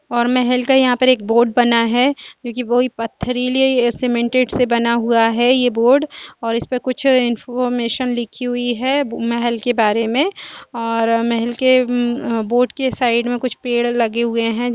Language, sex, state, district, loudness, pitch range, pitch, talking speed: Hindi, female, Chhattisgarh, Kabirdham, -17 LUFS, 235-255 Hz, 245 Hz, 180 wpm